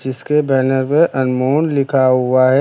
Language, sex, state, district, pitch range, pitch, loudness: Hindi, male, Uttar Pradesh, Lucknow, 130-145 Hz, 135 Hz, -15 LUFS